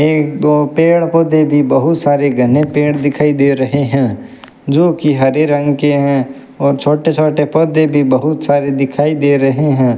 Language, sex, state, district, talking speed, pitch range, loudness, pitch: Hindi, male, Rajasthan, Bikaner, 180 wpm, 140-150 Hz, -12 LUFS, 145 Hz